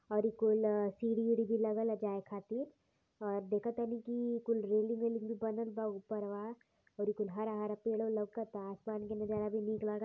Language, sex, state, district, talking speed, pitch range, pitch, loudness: Hindi, female, Uttar Pradesh, Varanasi, 205 wpm, 210-230 Hz, 215 Hz, -37 LUFS